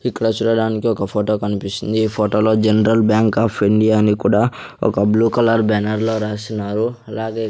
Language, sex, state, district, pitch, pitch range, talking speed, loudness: Telugu, male, Andhra Pradesh, Sri Satya Sai, 110 Hz, 105-110 Hz, 150 wpm, -17 LUFS